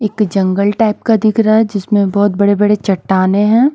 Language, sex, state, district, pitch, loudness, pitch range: Hindi, female, Bihar, Patna, 205 Hz, -13 LUFS, 200-215 Hz